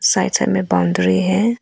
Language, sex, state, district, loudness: Hindi, female, Arunachal Pradesh, Papum Pare, -17 LUFS